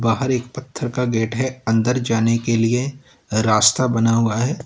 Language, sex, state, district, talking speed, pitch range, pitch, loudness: Hindi, male, Uttar Pradesh, Lalitpur, 180 wpm, 115-125 Hz, 120 Hz, -19 LUFS